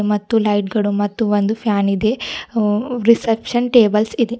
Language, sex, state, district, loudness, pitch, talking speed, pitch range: Kannada, female, Karnataka, Bidar, -17 LUFS, 215 Hz, 150 wpm, 205-235 Hz